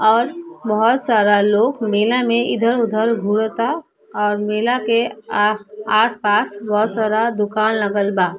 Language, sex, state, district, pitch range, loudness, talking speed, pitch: Bhojpuri, female, Bihar, East Champaran, 210-235 Hz, -17 LUFS, 145 wpm, 220 Hz